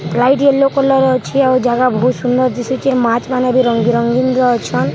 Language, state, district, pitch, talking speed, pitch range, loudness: Sambalpuri, Odisha, Sambalpur, 255 Hz, 205 wpm, 245-260 Hz, -13 LUFS